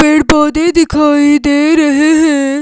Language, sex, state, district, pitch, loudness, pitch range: Hindi, male, Himachal Pradesh, Shimla, 300 Hz, -9 LUFS, 290-315 Hz